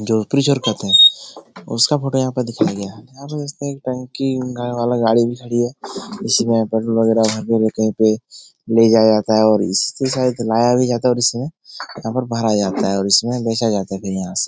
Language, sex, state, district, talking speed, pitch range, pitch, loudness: Hindi, male, Bihar, Supaul, 230 wpm, 110-130 Hz, 115 Hz, -17 LUFS